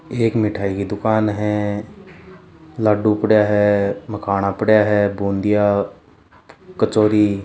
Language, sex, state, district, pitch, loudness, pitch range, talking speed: Hindi, male, Rajasthan, Churu, 105 Hz, -18 LUFS, 100-110 Hz, 115 wpm